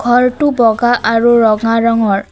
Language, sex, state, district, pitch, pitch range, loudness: Assamese, female, Assam, Kamrup Metropolitan, 230 Hz, 225-240 Hz, -12 LUFS